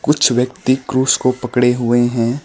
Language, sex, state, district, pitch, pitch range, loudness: Hindi, male, West Bengal, Alipurduar, 125 Hz, 120-130 Hz, -15 LUFS